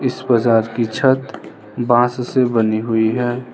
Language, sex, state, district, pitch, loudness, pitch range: Hindi, male, Arunachal Pradesh, Lower Dibang Valley, 120 Hz, -17 LUFS, 115-125 Hz